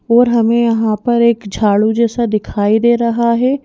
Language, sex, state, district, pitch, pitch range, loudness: Hindi, female, Madhya Pradesh, Bhopal, 235 Hz, 215-235 Hz, -13 LUFS